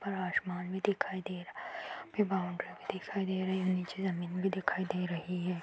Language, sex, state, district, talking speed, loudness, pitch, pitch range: Hindi, female, Uttar Pradesh, Deoria, 235 wpm, -36 LUFS, 185 Hz, 180-195 Hz